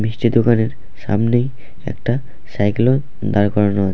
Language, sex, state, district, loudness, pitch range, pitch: Bengali, male, West Bengal, Purulia, -18 LUFS, 100-120 Hz, 110 Hz